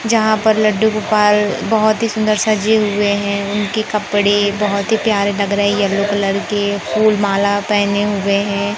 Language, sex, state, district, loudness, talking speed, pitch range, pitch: Hindi, male, Madhya Pradesh, Katni, -15 LUFS, 175 wpm, 200-215 Hz, 205 Hz